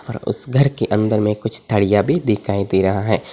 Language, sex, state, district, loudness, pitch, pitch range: Hindi, male, Assam, Hailakandi, -18 LUFS, 110 Hz, 100-115 Hz